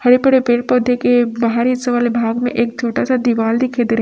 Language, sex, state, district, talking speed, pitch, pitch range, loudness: Hindi, female, Chhattisgarh, Raipur, 255 wpm, 240 Hz, 235-250 Hz, -15 LUFS